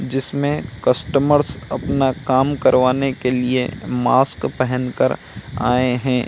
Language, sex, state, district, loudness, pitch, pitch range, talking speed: Hindi, male, Bihar, Samastipur, -18 LUFS, 130 Hz, 125-135 Hz, 115 wpm